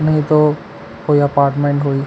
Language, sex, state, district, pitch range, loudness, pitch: Chhattisgarhi, male, Chhattisgarh, Kabirdham, 140-150 Hz, -15 LUFS, 145 Hz